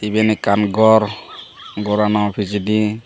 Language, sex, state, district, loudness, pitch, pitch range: Chakma, male, Tripura, Dhalai, -16 LUFS, 105 Hz, 105-110 Hz